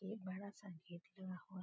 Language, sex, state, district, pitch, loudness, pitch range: Hindi, female, Uttar Pradesh, Etah, 185 Hz, -51 LUFS, 180-200 Hz